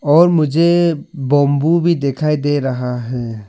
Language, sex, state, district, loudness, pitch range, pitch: Hindi, male, Arunachal Pradesh, Lower Dibang Valley, -15 LUFS, 135-165 Hz, 145 Hz